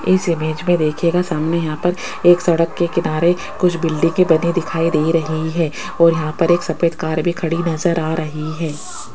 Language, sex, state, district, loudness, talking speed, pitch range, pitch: Hindi, female, Rajasthan, Jaipur, -17 LUFS, 190 wpm, 160-175 Hz, 165 Hz